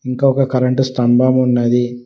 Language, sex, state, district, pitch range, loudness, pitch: Telugu, male, Telangana, Mahabubabad, 120-130 Hz, -14 LUFS, 125 Hz